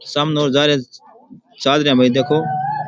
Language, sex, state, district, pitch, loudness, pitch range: Rajasthani, male, Rajasthan, Churu, 150 Hz, -16 LUFS, 140-230 Hz